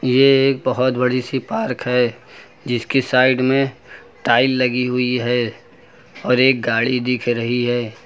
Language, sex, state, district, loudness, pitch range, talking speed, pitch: Hindi, male, Uttar Pradesh, Lucknow, -18 LUFS, 120-130 Hz, 150 wpm, 125 Hz